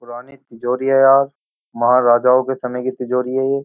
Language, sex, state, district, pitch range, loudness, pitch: Hindi, male, Uttar Pradesh, Jyotiba Phule Nagar, 125-135 Hz, -16 LUFS, 125 Hz